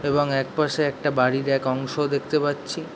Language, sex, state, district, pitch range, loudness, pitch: Bengali, male, West Bengal, Jhargram, 135-150 Hz, -23 LUFS, 145 Hz